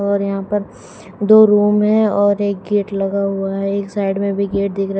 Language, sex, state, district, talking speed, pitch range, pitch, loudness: Hindi, female, Uttar Pradesh, Shamli, 240 wpm, 195-205 Hz, 200 Hz, -16 LUFS